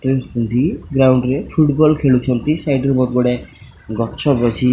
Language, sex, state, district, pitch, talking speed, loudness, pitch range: Odia, male, Odisha, Khordha, 130 Hz, 165 wpm, -16 LUFS, 125-140 Hz